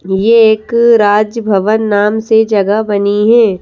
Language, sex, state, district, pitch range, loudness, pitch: Hindi, female, Madhya Pradesh, Bhopal, 205-225 Hz, -10 LUFS, 215 Hz